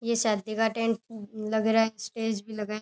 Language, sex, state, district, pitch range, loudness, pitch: Rajasthani, female, Rajasthan, Churu, 215-225 Hz, -28 LUFS, 220 Hz